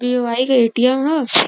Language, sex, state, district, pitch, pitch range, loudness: Bhojpuri, female, Uttar Pradesh, Varanasi, 250 Hz, 240-265 Hz, -16 LUFS